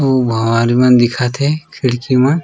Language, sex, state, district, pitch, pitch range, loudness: Chhattisgarhi, male, Chhattisgarh, Raigarh, 125 Hz, 120-140 Hz, -14 LUFS